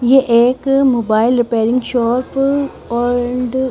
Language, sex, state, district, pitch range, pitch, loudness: Hindi, female, Haryana, Charkhi Dadri, 240-260 Hz, 250 Hz, -15 LUFS